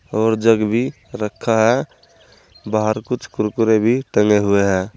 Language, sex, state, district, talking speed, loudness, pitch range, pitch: Hindi, male, Uttar Pradesh, Saharanpur, 145 wpm, -18 LUFS, 105-115 Hz, 110 Hz